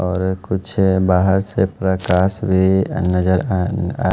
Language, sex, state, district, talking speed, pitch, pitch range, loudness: Hindi, male, Haryana, Jhajjar, 160 wpm, 95 Hz, 90-95 Hz, -17 LUFS